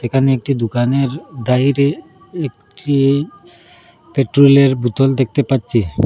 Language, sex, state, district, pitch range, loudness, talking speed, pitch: Bengali, male, Assam, Hailakandi, 125-140 Hz, -15 LUFS, 100 wpm, 135 Hz